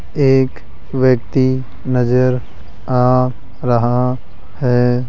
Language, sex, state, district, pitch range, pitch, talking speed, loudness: Hindi, male, Rajasthan, Jaipur, 120-130 Hz, 125 Hz, 70 wpm, -16 LUFS